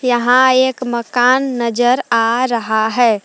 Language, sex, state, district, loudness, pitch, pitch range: Hindi, female, Jharkhand, Palamu, -14 LUFS, 245 Hz, 235-255 Hz